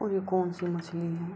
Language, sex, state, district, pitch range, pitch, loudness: Hindi, female, Bihar, Kishanganj, 170-185 Hz, 175 Hz, -31 LUFS